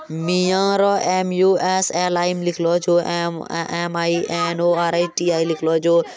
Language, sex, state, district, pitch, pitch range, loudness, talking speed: Maithili, male, Bihar, Bhagalpur, 175 Hz, 170-180 Hz, -19 LUFS, 80 wpm